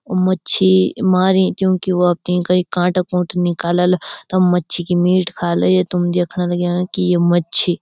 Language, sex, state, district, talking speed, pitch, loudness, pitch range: Garhwali, female, Uttarakhand, Uttarkashi, 175 wpm, 180 Hz, -16 LUFS, 175-185 Hz